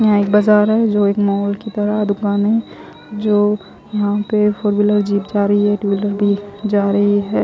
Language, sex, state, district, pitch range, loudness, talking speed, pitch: Hindi, female, Odisha, Khordha, 205-210 Hz, -16 LUFS, 210 wpm, 205 Hz